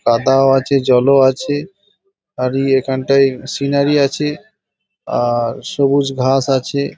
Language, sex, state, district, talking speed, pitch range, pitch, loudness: Bengali, male, West Bengal, Paschim Medinipur, 110 wpm, 130-140 Hz, 135 Hz, -15 LUFS